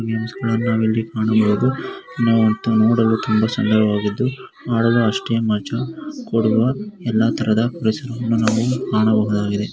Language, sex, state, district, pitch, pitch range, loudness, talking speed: Kannada, male, Karnataka, Gulbarga, 115 Hz, 110-120 Hz, -19 LUFS, 100 wpm